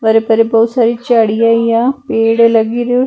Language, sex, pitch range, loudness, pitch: Punjabi, female, 225-235 Hz, -11 LUFS, 230 Hz